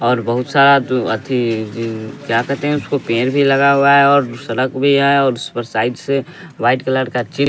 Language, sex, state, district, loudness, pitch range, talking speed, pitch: Hindi, male, Bihar, West Champaran, -15 LUFS, 120-140 Hz, 230 wpm, 130 Hz